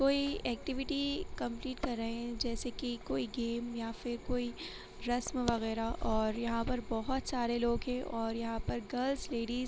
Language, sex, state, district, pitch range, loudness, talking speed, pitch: Hindi, female, Jharkhand, Jamtara, 230-255 Hz, -36 LUFS, 175 wpm, 240 Hz